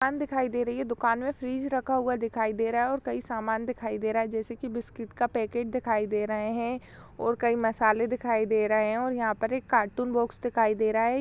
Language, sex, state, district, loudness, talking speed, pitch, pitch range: Hindi, female, Uttar Pradesh, Jyotiba Phule Nagar, -28 LUFS, 230 wpm, 235 Hz, 220-250 Hz